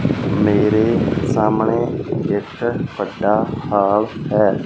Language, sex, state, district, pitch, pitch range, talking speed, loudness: Punjabi, male, Punjab, Fazilka, 105 Hz, 105-115 Hz, 75 wpm, -18 LUFS